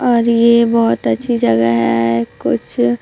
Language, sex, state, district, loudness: Hindi, female, Chhattisgarh, Raipur, -14 LUFS